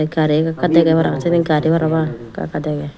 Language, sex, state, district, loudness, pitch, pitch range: Chakma, female, Tripura, Dhalai, -17 LUFS, 160 Hz, 150-165 Hz